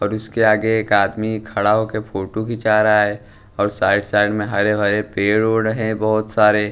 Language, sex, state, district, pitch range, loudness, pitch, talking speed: Hindi, male, Punjab, Pathankot, 105-110 Hz, -18 LUFS, 105 Hz, 205 wpm